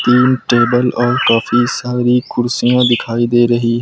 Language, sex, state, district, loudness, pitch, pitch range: Hindi, male, Uttar Pradesh, Lucknow, -13 LUFS, 120 Hz, 120-125 Hz